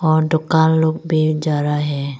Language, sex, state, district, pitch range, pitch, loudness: Hindi, female, Arunachal Pradesh, Longding, 150-160 Hz, 155 Hz, -17 LUFS